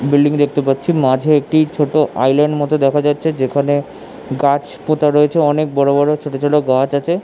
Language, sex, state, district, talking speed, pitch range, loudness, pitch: Bengali, male, West Bengal, Malda, 185 wpm, 140-150 Hz, -15 LUFS, 145 Hz